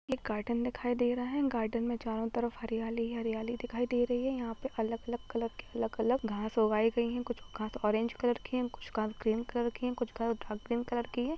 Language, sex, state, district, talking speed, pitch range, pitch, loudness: Hindi, female, Jharkhand, Jamtara, 200 wpm, 225-245 Hz, 235 Hz, -34 LUFS